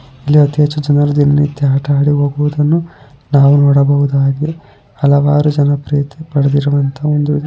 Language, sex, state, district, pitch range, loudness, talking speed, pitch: Kannada, female, Karnataka, Chamarajanagar, 140-150 Hz, -13 LUFS, 120 wpm, 145 Hz